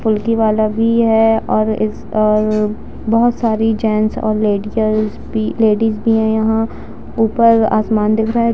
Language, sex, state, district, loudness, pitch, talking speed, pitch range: Hindi, female, Jharkhand, Jamtara, -15 LUFS, 220 Hz, 135 wpm, 215-225 Hz